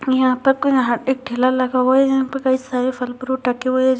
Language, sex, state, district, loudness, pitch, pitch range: Hindi, female, Bihar, Purnia, -18 LUFS, 260 Hz, 255-265 Hz